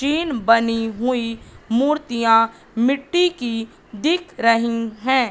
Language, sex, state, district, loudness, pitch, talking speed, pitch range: Hindi, female, Madhya Pradesh, Katni, -19 LUFS, 235 Hz, 100 wpm, 230-280 Hz